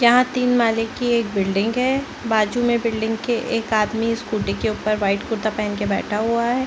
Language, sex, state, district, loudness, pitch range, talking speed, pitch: Hindi, female, Chhattisgarh, Bilaspur, -21 LUFS, 215-240 Hz, 205 wpm, 225 Hz